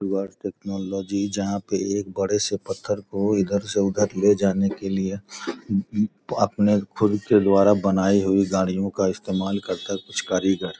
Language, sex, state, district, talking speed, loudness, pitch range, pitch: Hindi, male, Bihar, Gopalganj, 155 wpm, -23 LUFS, 95-100 Hz, 100 Hz